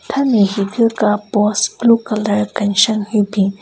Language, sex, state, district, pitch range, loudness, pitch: Rengma, female, Nagaland, Kohima, 205-225 Hz, -15 LUFS, 210 Hz